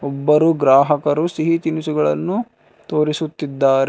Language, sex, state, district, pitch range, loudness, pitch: Kannada, male, Karnataka, Bangalore, 140-160 Hz, -17 LUFS, 150 Hz